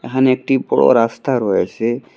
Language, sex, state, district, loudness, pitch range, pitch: Bengali, male, Assam, Hailakandi, -16 LUFS, 115-130 Hz, 130 Hz